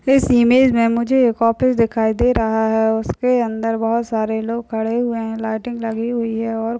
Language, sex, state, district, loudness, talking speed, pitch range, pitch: Hindi, female, Uttar Pradesh, Budaun, -18 LUFS, 210 wpm, 225-240 Hz, 230 Hz